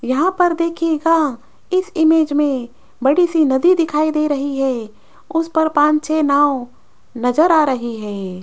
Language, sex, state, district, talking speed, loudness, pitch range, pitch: Hindi, female, Rajasthan, Jaipur, 155 wpm, -17 LUFS, 265-325 Hz, 300 Hz